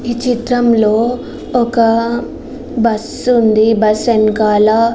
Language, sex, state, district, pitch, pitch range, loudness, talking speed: Telugu, female, Andhra Pradesh, Srikakulam, 230 Hz, 220-240 Hz, -13 LUFS, 95 wpm